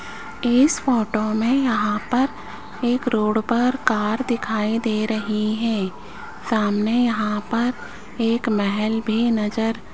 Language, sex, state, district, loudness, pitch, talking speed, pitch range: Hindi, female, Rajasthan, Jaipur, -21 LUFS, 225 Hz, 125 wpm, 215-240 Hz